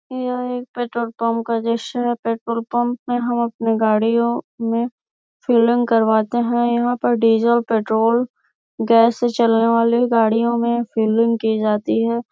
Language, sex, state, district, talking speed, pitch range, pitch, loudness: Hindi, female, Uttar Pradesh, Gorakhpur, 150 wpm, 230-240 Hz, 235 Hz, -18 LUFS